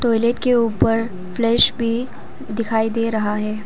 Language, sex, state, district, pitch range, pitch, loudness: Hindi, female, Arunachal Pradesh, Papum Pare, 220-235 Hz, 230 Hz, -19 LUFS